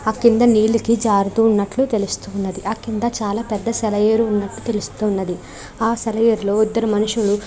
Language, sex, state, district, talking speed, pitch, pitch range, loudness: Telugu, female, Andhra Pradesh, Krishna, 145 wpm, 220 Hz, 205-230 Hz, -18 LUFS